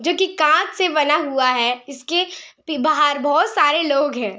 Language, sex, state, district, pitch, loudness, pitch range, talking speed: Hindi, female, Bihar, Araria, 300 Hz, -18 LUFS, 280-340 Hz, 190 wpm